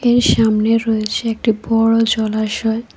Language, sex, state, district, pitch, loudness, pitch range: Bengali, female, Tripura, West Tripura, 225 Hz, -16 LUFS, 220-230 Hz